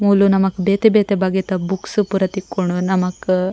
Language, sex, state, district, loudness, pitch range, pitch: Tulu, female, Karnataka, Dakshina Kannada, -17 LUFS, 185-200 Hz, 190 Hz